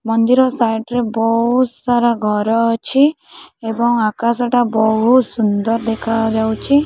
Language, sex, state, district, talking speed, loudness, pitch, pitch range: Odia, female, Odisha, Khordha, 105 wpm, -15 LUFS, 230 Hz, 225-245 Hz